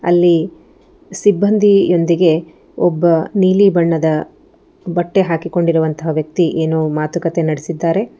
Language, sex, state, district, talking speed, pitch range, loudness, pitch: Kannada, female, Karnataka, Bangalore, 80 wpm, 160-190 Hz, -15 LUFS, 170 Hz